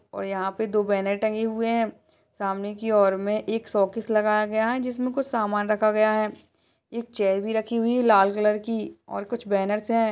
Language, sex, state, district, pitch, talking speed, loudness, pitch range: Hindi, female, Uttar Pradesh, Budaun, 215 Hz, 220 wpm, -24 LUFS, 205-225 Hz